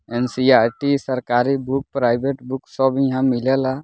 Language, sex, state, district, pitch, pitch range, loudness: Bhojpuri, male, Bihar, Muzaffarpur, 130 Hz, 125-135 Hz, -19 LUFS